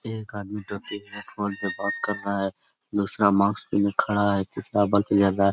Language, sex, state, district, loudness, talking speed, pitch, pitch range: Hindi, male, Jharkhand, Sahebganj, -25 LUFS, 165 wpm, 100 Hz, 100-105 Hz